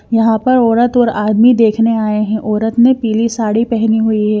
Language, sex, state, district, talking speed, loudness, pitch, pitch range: Hindi, female, Haryana, Jhajjar, 205 wpm, -12 LUFS, 225 Hz, 215-235 Hz